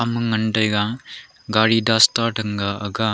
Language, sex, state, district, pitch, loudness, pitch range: Wancho, male, Arunachal Pradesh, Longding, 110 Hz, -19 LUFS, 105-115 Hz